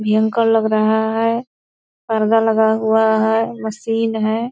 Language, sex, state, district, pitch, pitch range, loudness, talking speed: Hindi, female, Bihar, Purnia, 220 Hz, 220-225 Hz, -17 LUFS, 135 wpm